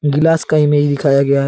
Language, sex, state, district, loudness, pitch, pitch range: Hindi, male, Bihar, Jahanabad, -13 LUFS, 145 Hz, 140-155 Hz